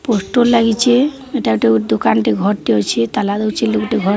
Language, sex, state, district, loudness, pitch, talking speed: Odia, female, Odisha, Sambalpur, -15 LUFS, 210 Hz, 170 wpm